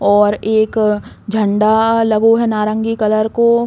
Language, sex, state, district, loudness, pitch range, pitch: Bundeli, female, Uttar Pradesh, Hamirpur, -14 LUFS, 210-225 Hz, 215 Hz